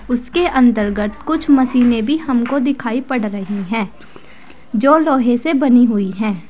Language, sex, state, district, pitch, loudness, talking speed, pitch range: Hindi, female, Uttar Pradesh, Saharanpur, 245 Hz, -15 LUFS, 150 wpm, 220-275 Hz